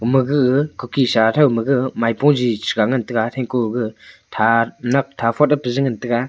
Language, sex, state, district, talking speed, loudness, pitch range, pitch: Wancho, male, Arunachal Pradesh, Longding, 155 wpm, -18 LUFS, 115-135 Hz, 125 Hz